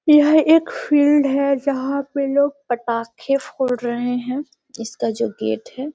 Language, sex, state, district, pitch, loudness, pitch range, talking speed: Hindi, female, Bihar, Gaya, 275 Hz, -19 LUFS, 240-285 Hz, 160 wpm